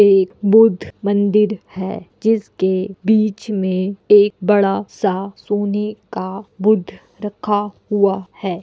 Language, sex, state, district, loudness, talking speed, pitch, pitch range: Hindi, female, Bihar, Kishanganj, -17 LUFS, 110 wpm, 205 Hz, 190-210 Hz